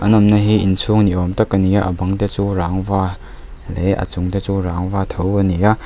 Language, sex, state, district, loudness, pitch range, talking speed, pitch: Mizo, male, Mizoram, Aizawl, -17 LUFS, 90-100 Hz, 245 wpm, 95 Hz